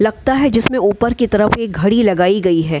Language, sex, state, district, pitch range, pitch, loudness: Hindi, female, Bihar, Gaya, 190-235 Hz, 210 Hz, -14 LUFS